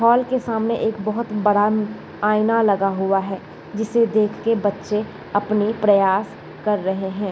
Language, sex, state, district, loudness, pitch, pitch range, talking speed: Hindi, female, Bihar, East Champaran, -20 LUFS, 210 Hz, 200-225 Hz, 165 wpm